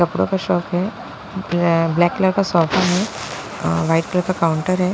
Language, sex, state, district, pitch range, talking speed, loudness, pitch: Hindi, female, Punjab, Pathankot, 170-190 Hz, 195 wpm, -19 LUFS, 180 Hz